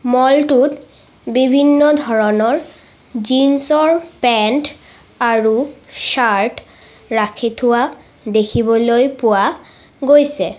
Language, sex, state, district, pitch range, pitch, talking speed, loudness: Assamese, female, Assam, Sonitpur, 230-285 Hz, 255 Hz, 80 wpm, -15 LUFS